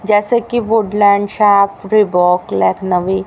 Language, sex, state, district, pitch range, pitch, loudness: Hindi, female, Haryana, Rohtak, 190-215 Hz, 200 Hz, -13 LUFS